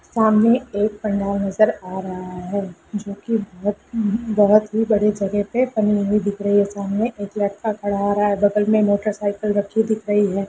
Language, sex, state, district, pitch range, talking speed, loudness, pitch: Hindi, female, Bihar, Lakhisarai, 200-215 Hz, 205 wpm, -20 LUFS, 205 Hz